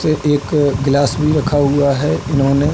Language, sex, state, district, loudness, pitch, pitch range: Hindi, male, Uttar Pradesh, Budaun, -15 LUFS, 145 Hz, 140-150 Hz